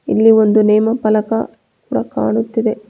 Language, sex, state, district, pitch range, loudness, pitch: Kannada, female, Karnataka, Bangalore, 215-225 Hz, -14 LUFS, 220 Hz